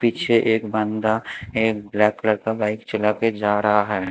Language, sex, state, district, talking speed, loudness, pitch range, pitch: Hindi, male, Haryana, Jhajjar, 190 wpm, -21 LUFS, 105-110 Hz, 110 Hz